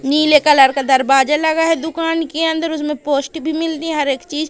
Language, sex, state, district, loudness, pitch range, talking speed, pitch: Hindi, female, Madhya Pradesh, Katni, -15 LUFS, 280-320 Hz, 215 wpm, 305 Hz